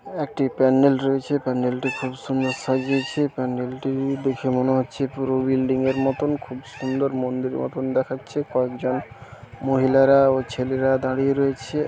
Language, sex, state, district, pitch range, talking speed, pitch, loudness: Bengali, male, West Bengal, Paschim Medinipur, 130-135 Hz, 125 wpm, 130 Hz, -22 LUFS